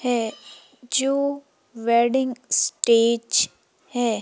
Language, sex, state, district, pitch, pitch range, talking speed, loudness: Hindi, female, Madhya Pradesh, Umaria, 245 Hz, 235-265 Hz, 70 wpm, -22 LUFS